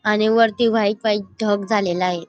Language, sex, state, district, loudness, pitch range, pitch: Marathi, female, Maharashtra, Dhule, -19 LUFS, 200-220 Hz, 210 Hz